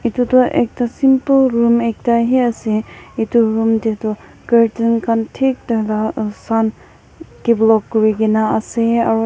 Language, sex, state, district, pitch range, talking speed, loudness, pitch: Nagamese, female, Nagaland, Kohima, 220-235 Hz, 150 wpm, -16 LUFS, 230 Hz